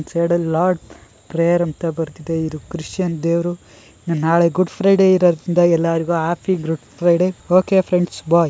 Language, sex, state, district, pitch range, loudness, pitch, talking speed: Kannada, male, Karnataka, Gulbarga, 165-180 Hz, -18 LUFS, 170 Hz, 150 wpm